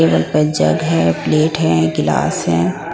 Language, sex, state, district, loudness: Hindi, female, Punjab, Pathankot, -15 LUFS